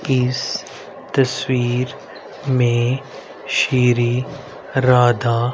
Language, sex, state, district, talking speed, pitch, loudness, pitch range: Hindi, male, Haryana, Rohtak, 55 wpm, 125 Hz, -18 LUFS, 120-135 Hz